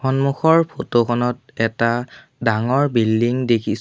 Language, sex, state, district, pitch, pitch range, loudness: Assamese, male, Assam, Sonitpur, 120 Hz, 115-140 Hz, -19 LUFS